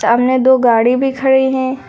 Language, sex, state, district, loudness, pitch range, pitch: Hindi, female, Uttar Pradesh, Lucknow, -12 LUFS, 245-265 Hz, 260 Hz